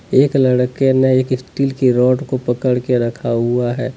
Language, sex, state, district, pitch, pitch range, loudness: Hindi, male, Jharkhand, Deoghar, 130 Hz, 125-130 Hz, -16 LUFS